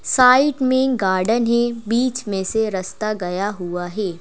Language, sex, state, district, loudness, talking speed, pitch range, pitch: Hindi, female, Madhya Pradesh, Bhopal, -19 LUFS, 155 wpm, 190-250 Hz, 220 Hz